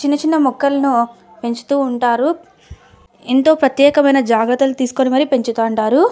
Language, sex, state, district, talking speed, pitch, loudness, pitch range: Telugu, female, Andhra Pradesh, Anantapur, 120 wpm, 270 Hz, -15 LUFS, 235-285 Hz